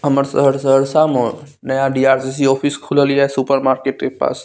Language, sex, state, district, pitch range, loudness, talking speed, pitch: Maithili, male, Bihar, Saharsa, 135-140 Hz, -16 LUFS, 175 wpm, 135 Hz